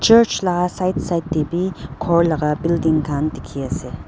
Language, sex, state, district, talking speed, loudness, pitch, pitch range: Nagamese, female, Nagaland, Dimapur, 175 wpm, -19 LUFS, 170 Hz, 155-180 Hz